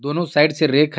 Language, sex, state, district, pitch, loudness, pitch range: Hindi, male, Jharkhand, Garhwa, 150 Hz, -17 LUFS, 150-155 Hz